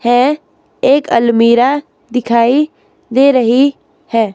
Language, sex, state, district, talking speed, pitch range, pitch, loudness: Hindi, female, Himachal Pradesh, Shimla, 95 wpm, 235-280 Hz, 250 Hz, -12 LUFS